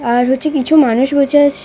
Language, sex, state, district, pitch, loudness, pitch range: Bengali, female, West Bengal, Dakshin Dinajpur, 280 Hz, -12 LUFS, 260-290 Hz